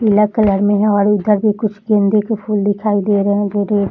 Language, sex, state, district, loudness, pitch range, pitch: Hindi, female, Bihar, Saharsa, -15 LUFS, 205-210 Hz, 205 Hz